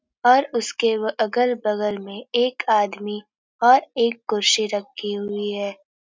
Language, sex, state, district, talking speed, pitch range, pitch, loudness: Hindi, female, Jharkhand, Sahebganj, 140 wpm, 205-240 Hz, 215 Hz, -21 LUFS